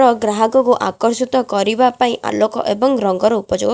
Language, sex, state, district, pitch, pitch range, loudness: Odia, female, Odisha, Khordha, 230 Hz, 215-255 Hz, -16 LUFS